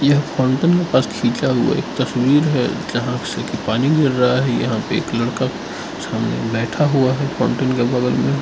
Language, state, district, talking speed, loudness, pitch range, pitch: Hindi, Arunachal Pradesh, Lower Dibang Valley, 195 wpm, -18 LUFS, 125-145 Hz, 130 Hz